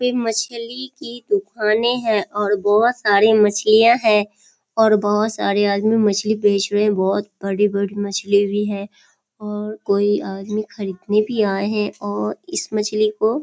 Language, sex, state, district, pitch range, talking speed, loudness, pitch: Hindi, female, Bihar, Kishanganj, 205-220 Hz, 155 wpm, -18 LUFS, 210 Hz